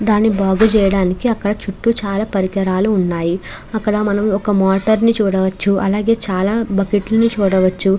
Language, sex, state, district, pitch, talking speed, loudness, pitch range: Telugu, female, Andhra Pradesh, Krishna, 200 Hz, 130 wpm, -16 LUFS, 190-215 Hz